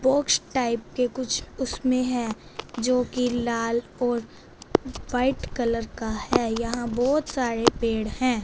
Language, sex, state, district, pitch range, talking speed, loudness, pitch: Hindi, female, Punjab, Fazilka, 230-255 Hz, 135 wpm, -25 LUFS, 245 Hz